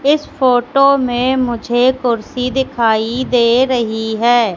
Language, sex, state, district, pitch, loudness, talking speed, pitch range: Hindi, female, Madhya Pradesh, Katni, 245 Hz, -14 LUFS, 120 wpm, 235-260 Hz